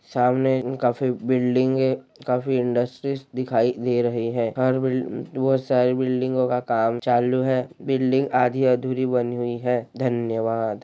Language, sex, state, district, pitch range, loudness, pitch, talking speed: Hindi, male, Chhattisgarh, Raigarh, 120-130 Hz, -23 LUFS, 125 Hz, 140 wpm